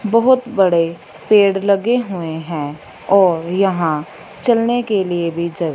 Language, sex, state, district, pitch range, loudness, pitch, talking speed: Hindi, female, Punjab, Fazilka, 165-215 Hz, -16 LUFS, 190 Hz, 125 wpm